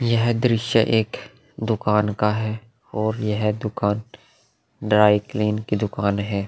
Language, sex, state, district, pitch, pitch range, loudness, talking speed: Hindi, male, Uttar Pradesh, Hamirpur, 105 Hz, 105-110 Hz, -22 LUFS, 120 wpm